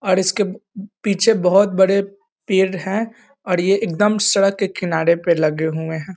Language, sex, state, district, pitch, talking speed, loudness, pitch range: Hindi, male, Bihar, East Champaran, 195 Hz, 165 wpm, -18 LUFS, 180-205 Hz